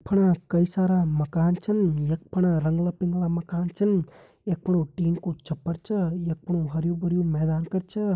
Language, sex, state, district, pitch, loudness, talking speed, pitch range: Hindi, male, Uttarakhand, Uttarkashi, 175 Hz, -25 LUFS, 185 wpm, 165-185 Hz